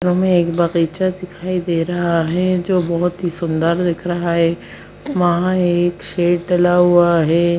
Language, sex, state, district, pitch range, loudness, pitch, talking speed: Hindi, female, Bihar, Madhepura, 170-180 Hz, -17 LUFS, 175 Hz, 160 wpm